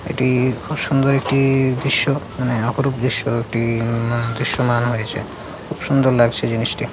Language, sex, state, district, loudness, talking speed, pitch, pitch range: Bengali, male, West Bengal, Jhargram, -18 LUFS, 130 wpm, 125 Hz, 115-135 Hz